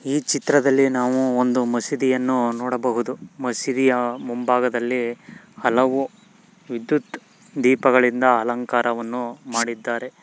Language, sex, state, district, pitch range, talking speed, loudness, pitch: Kannada, male, Karnataka, Mysore, 120-135 Hz, 80 wpm, -21 LUFS, 125 Hz